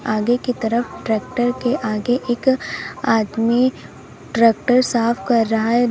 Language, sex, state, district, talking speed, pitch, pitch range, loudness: Hindi, female, Uttar Pradesh, Lalitpur, 130 wpm, 235 Hz, 225-250 Hz, -19 LUFS